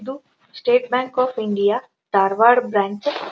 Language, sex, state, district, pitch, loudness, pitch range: Kannada, female, Karnataka, Dharwad, 245 Hz, -19 LUFS, 205-265 Hz